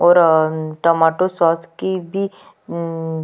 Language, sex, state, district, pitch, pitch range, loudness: Hindi, female, Chhattisgarh, Kabirdham, 165 Hz, 160-180 Hz, -18 LUFS